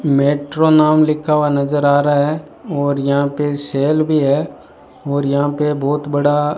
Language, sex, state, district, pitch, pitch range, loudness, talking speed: Hindi, male, Rajasthan, Bikaner, 145 Hz, 140-150 Hz, -16 LUFS, 180 wpm